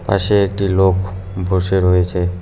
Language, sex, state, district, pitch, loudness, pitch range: Bengali, male, West Bengal, Cooch Behar, 95 Hz, -16 LUFS, 90-95 Hz